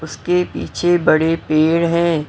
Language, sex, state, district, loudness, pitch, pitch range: Hindi, female, Maharashtra, Mumbai Suburban, -16 LUFS, 165 Hz, 155-175 Hz